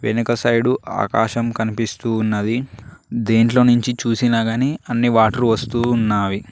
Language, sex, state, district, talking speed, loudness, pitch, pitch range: Telugu, male, Telangana, Mahabubabad, 120 wpm, -18 LUFS, 115 Hz, 110-120 Hz